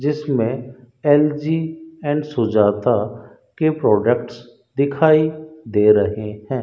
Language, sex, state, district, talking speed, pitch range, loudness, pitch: Hindi, male, Rajasthan, Bikaner, 90 wpm, 115-155 Hz, -18 LUFS, 145 Hz